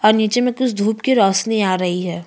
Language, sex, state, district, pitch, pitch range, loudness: Hindi, female, Chhattisgarh, Jashpur, 215 Hz, 185-240 Hz, -17 LUFS